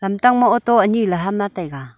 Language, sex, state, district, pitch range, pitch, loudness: Wancho, female, Arunachal Pradesh, Longding, 180-235 Hz, 200 Hz, -17 LUFS